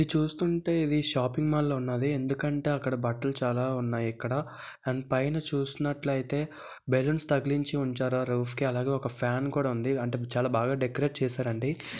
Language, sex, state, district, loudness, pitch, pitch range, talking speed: Telugu, male, Andhra Pradesh, Visakhapatnam, -29 LUFS, 135 Hz, 125-145 Hz, 160 wpm